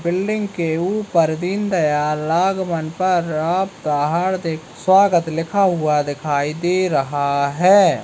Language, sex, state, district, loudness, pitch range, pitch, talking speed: Hindi, male, Uttarakhand, Tehri Garhwal, -18 LUFS, 150-185 Hz, 170 Hz, 110 wpm